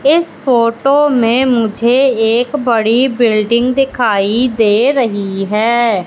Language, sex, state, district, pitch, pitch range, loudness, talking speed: Hindi, female, Madhya Pradesh, Katni, 235 Hz, 225-260 Hz, -12 LUFS, 110 wpm